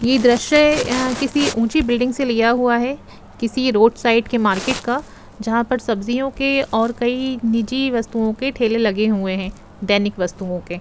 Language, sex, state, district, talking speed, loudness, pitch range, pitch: Hindi, female, Jharkhand, Jamtara, 170 wpm, -18 LUFS, 220-255 Hz, 235 Hz